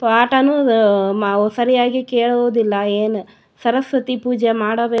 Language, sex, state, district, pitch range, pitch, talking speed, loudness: Kannada, female, Karnataka, Bellary, 210-245 Hz, 235 Hz, 95 wpm, -17 LUFS